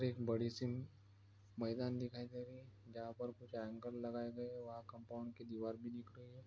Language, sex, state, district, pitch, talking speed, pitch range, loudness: Hindi, male, Bihar, Araria, 120 Hz, 215 wpm, 115-125 Hz, -47 LUFS